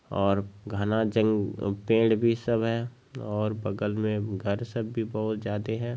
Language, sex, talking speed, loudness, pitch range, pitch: Maithili, male, 150 wpm, -28 LUFS, 105-115 Hz, 110 Hz